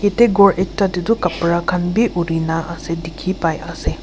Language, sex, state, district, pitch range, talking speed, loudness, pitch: Nagamese, female, Nagaland, Kohima, 165-195 Hz, 210 wpm, -18 LUFS, 175 Hz